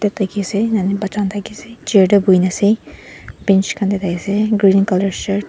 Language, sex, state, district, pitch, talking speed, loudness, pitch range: Nagamese, female, Nagaland, Dimapur, 200 Hz, 230 wpm, -16 LUFS, 195-210 Hz